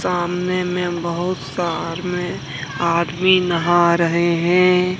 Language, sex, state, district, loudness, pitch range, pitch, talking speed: Hindi, male, Jharkhand, Deoghar, -18 LUFS, 170-180 Hz, 175 Hz, 120 wpm